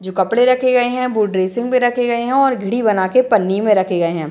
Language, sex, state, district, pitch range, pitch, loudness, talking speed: Hindi, female, Bihar, Muzaffarpur, 190-250 Hz, 235 Hz, -16 LUFS, 280 wpm